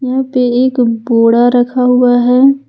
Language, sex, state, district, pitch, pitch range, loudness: Hindi, female, Jharkhand, Ranchi, 250 Hz, 245-255 Hz, -10 LUFS